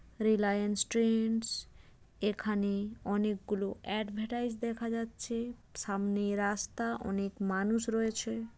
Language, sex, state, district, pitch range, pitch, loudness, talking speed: Bengali, female, West Bengal, Jalpaiguri, 205-230 Hz, 215 Hz, -34 LUFS, 90 wpm